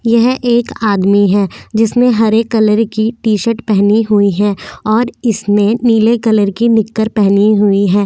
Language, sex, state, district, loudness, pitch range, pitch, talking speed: Hindi, female, Goa, North and South Goa, -12 LUFS, 205-230 Hz, 220 Hz, 170 wpm